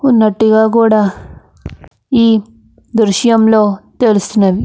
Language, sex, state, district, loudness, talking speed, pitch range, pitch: Telugu, female, Andhra Pradesh, Anantapur, -11 LUFS, 65 wpm, 205-230 Hz, 220 Hz